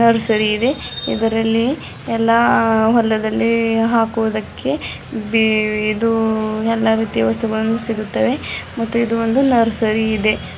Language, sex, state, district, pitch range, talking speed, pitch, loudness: Kannada, female, Karnataka, Bidar, 220-230 Hz, 95 wpm, 225 Hz, -17 LUFS